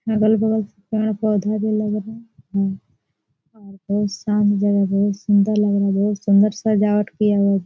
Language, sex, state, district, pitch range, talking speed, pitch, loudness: Hindi, female, Chhattisgarh, Korba, 200-215 Hz, 165 wpm, 205 Hz, -19 LUFS